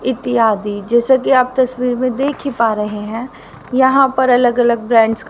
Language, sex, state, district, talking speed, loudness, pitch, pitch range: Hindi, female, Haryana, Rohtak, 195 wpm, -15 LUFS, 245 Hz, 225-260 Hz